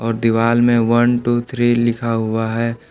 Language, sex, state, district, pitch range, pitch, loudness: Hindi, male, Jharkhand, Palamu, 115-120 Hz, 115 Hz, -16 LUFS